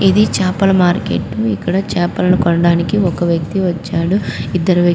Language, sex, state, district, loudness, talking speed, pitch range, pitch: Telugu, female, Andhra Pradesh, Krishna, -15 LUFS, 145 wpm, 170-190 Hz, 180 Hz